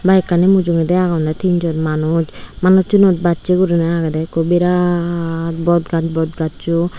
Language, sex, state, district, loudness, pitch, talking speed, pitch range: Chakma, female, Tripura, Unakoti, -15 LUFS, 170 Hz, 145 wpm, 165-180 Hz